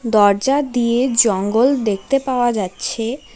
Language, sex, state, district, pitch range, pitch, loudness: Bengali, female, West Bengal, Alipurduar, 210-260 Hz, 235 Hz, -17 LUFS